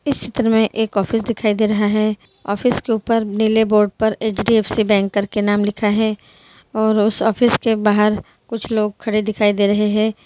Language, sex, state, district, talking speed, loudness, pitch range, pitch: Hindi, female, Bihar, Muzaffarpur, 200 wpm, -17 LUFS, 210-225 Hz, 215 Hz